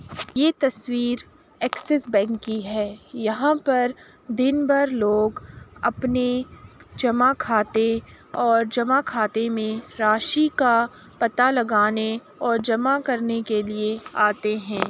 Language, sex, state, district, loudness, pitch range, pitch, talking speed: Hindi, female, Uttar Pradesh, Jalaun, -22 LUFS, 215-255 Hz, 230 Hz, 125 wpm